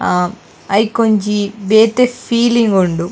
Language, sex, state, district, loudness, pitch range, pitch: Tulu, female, Karnataka, Dakshina Kannada, -14 LUFS, 190-230 Hz, 210 Hz